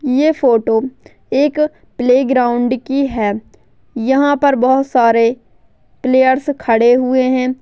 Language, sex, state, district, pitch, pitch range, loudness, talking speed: Hindi, female, Chhattisgarh, Jashpur, 255 Hz, 240-275 Hz, -14 LUFS, 110 wpm